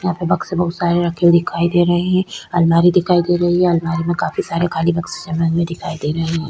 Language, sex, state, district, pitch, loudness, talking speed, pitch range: Hindi, female, Uttar Pradesh, Jyotiba Phule Nagar, 170 Hz, -17 LUFS, 230 wpm, 170-175 Hz